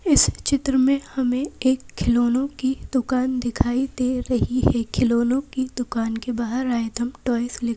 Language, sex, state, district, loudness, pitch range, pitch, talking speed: Hindi, female, Madhya Pradesh, Bhopal, -22 LUFS, 240-260 Hz, 255 Hz, 155 wpm